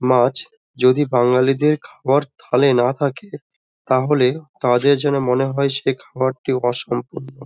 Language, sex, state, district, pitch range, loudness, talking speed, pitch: Bengali, male, West Bengal, Dakshin Dinajpur, 125-140 Hz, -18 LUFS, 120 wpm, 130 Hz